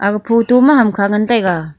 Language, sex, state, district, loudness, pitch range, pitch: Wancho, female, Arunachal Pradesh, Longding, -12 LUFS, 200-235 Hz, 210 Hz